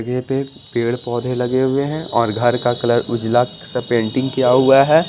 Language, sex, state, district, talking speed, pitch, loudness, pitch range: Hindi, male, Bihar, Patna, 190 wpm, 125 Hz, -17 LUFS, 120-135 Hz